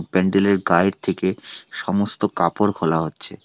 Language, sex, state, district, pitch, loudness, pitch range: Bengali, male, West Bengal, Alipurduar, 95 Hz, -20 LUFS, 85-100 Hz